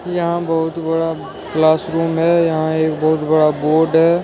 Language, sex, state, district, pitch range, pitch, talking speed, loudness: Hindi, male, Jharkhand, Ranchi, 155-165 Hz, 160 Hz, 155 wpm, -16 LUFS